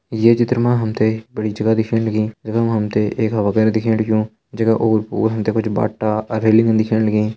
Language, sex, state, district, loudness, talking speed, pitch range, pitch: Hindi, male, Uttarakhand, Uttarkashi, -17 LUFS, 195 wpm, 110-115 Hz, 110 Hz